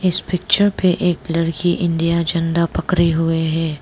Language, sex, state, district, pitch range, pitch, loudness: Hindi, female, Arunachal Pradesh, Lower Dibang Valley, 165-180 Hz, 170 Hz, -17 LUFS